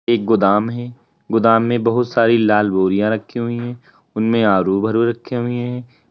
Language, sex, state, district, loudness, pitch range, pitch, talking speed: Hindi, male, Uttar Pradesh, Lalitpur, -17 LUFS, 110-120 Hz, 115 Hz, 175 wpm